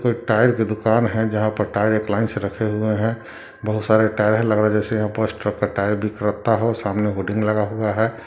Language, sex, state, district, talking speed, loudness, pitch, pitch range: Hindi, male, Bihar, Sitamarhi, 145 wpm, -20 LUFS, 110 Hz, 105-110 Hz